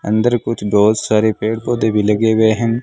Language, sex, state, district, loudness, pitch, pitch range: Hindi, male, Rajasthan, Bikaner, -15 LUFS, 110 Hz, 105-115 Hz